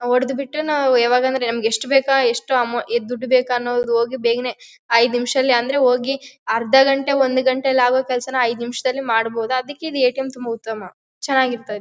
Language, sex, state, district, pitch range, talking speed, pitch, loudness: Kannada, female, Karnataka, Bellary, 235-265 Hz, 185 wpm, 250 Hz, -18 LUFS